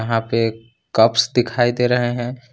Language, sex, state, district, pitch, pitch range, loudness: Hindi, male, Jharkhand, Ranchi, 120 Hz, 115-125 Hz, -18 LUFS